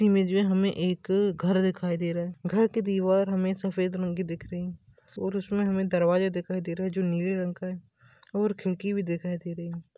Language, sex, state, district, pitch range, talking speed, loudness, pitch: Hindi, male, Chhattisgarh, Bastar, 175-195 Hz, 235 wpm, -28 LUFS, 185 Hz